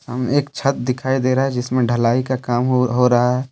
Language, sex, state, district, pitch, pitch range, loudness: Hindi, male, Jharkhand, Deoghar, 125 Hz, 125-130 Hz, -18 LUFS